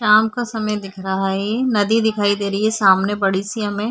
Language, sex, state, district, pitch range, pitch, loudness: Hindi, female, Maharashtra, Chandrapur, 195-220 Hz, 205 Hz, -18 LUFS